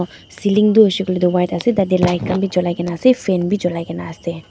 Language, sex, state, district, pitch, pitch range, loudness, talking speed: Nagamese, female, Nagaland, Dimapur, 180 Hz, 175-200 Hz, -17 LUFS, 225 wpm